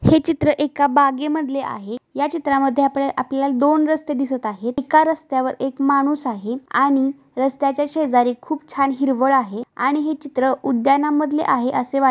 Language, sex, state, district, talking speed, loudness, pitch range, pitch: Marathi, female, Maharashtra, Aurangabad, 175 wpm, -19 LUFS, 265-290 Hz, 275 Hz